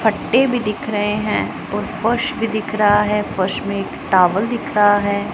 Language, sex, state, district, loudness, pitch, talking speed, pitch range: Hindi, male, Punjab, Pathankot, -18 LUFS, 210 Hz, 190 wpm, 205-225 Hz